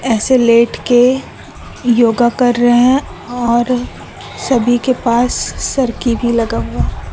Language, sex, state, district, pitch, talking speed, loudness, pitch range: Hindi, female, Chhattisgarh, Raipur, 240 Hz, 125 wpm, -13 LUFS, 235-250 Hz